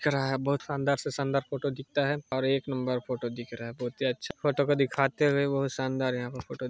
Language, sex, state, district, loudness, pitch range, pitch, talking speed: Hindi, male, Chhattisgarh, Sarguja, -30 LUFS, 130-140 Hz, 135 Hz, 250 wpm